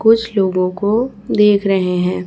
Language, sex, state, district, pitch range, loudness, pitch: Hindi, female, Chhattisgarh, Raipur, 185-220 Hz, -15 LUFS, 200 Hz